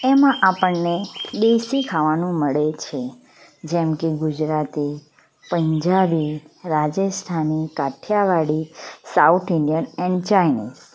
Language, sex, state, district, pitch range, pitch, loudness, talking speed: Gujarati, female, Gujarat, Valsad, 155-190 Hz, 165 Hz, -20 LUFS, 95 wpm